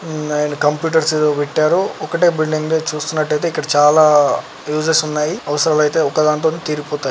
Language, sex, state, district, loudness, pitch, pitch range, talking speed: Telugu, male, Telangana, Karimnagar, -16 LUFS, 155 Hz, 150-155 Hz, 145 wpm